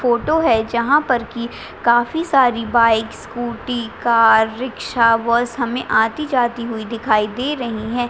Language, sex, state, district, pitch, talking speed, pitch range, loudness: Hindi, female, Chhattisgarh, Bilaspur, 235 Hz, 135 wpm, 230-250 Hz, -17 LUFS